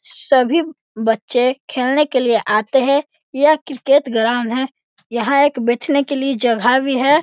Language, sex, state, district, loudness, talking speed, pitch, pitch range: Hindi, male, Bihar, Sitamarhi, -16 LUFS, 155 wpm, 265 Hz, 240-285 Hz